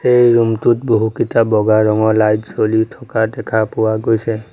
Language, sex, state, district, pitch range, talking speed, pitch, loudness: Assamese, male, Assam, Sonitpur, 110-115 Hz, 160 wpm, 110 Hz, -15 LUFS